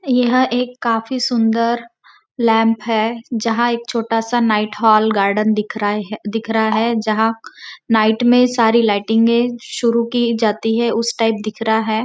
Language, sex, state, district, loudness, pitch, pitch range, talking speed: Hindi, female, Maharashtra, Nagpur, -16 LUFS, 225 Hz, 220-235 Hz, 160 wpm